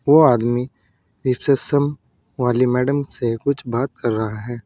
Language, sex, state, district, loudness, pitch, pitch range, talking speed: Hindi, male, Uttar Pradesh, Saharanpur, -19 LUFS, 125 Hz, 115-140 Hz, 140 wpm